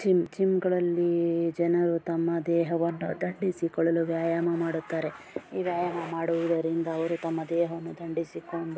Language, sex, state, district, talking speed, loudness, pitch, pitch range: Kannada, female, Karnataka, Dharwad, 115 wpm, -28 LUFS, 170 Hz, 165-170 Hz